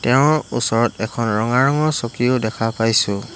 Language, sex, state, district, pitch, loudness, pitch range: Assamese, male, Assam, Hailakandi, 120 Hz, -18 LUFS, 115-130 Hz